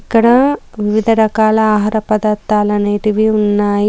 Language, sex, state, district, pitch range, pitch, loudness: Telugu, female, Telangana, Komaram Bheem, 210-220 Hz, 215 Hz, -13 LUFS